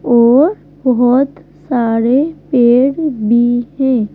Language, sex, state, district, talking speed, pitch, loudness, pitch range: Hindi, female, Madhya Pradesh, Bhopal, 85 wpm, 250 Hz, -13 LUFS, 235-275 Hz